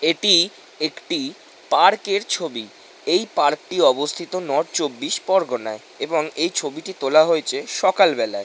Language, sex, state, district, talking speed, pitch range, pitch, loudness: Bengali, male, West Bengal, North 24 Parganas, 135 wpm, 150-190 Hz, 165 Hz, -20 LUFS